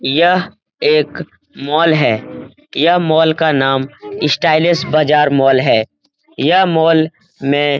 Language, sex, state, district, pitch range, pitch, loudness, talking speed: Hindi, male, Bihar, Lakhisarai, 140-180 Hz, 160 Hz, -13 LUFS, 125 wpm